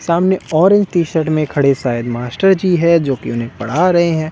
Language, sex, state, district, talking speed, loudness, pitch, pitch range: Hindi, male, Delhi, New Delhi, 210 wpm, -15 LUFS, 160 Hz, 135-180 Hz